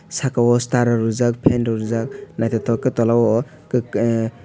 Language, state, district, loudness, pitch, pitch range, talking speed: Kokborok, Tripura, West Tripura, -19 LUFS, 120 Hz, 115-125 Hz, 190 wpm